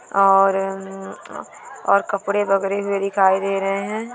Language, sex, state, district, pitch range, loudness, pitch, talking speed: Hindi, female, Bihar, Jahanabad, 195-200 Hz, -19 LUFS, 195 Hz, 145 wpm